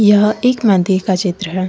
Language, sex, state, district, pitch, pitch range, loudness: Hindi, female, Jharkhand, Deoghar, 195 Hz, 185-210 Hz, -14 LUFS